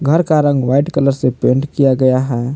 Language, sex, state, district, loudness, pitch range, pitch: Hindi, male, Jharkhand, Palamu, -14 LUFS, 130-145 Hz, 135 Hz